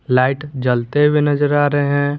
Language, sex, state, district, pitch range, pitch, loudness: Hindi, male, Jharkhand, Garhwa, 130-145 Hz, 145 Hz, -16 LUFS